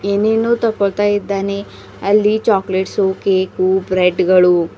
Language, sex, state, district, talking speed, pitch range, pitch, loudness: Kannada, female, Karnataka, Bidar, 115 wpm, 185-205 Hz, 195 Hz, -15 LUFS